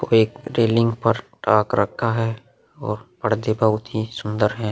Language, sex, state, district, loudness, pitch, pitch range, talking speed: Hindi, male, Uttar Pradesh, Muzaffarnagar, -21 LUFS, 115 Hz, 105-115 Hz, 140 wpm